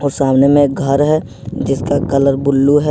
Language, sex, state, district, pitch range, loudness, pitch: Hindi, male, Jharkhand, Ranchi, 135-145 Hz, -14 LUFS, 140 Hz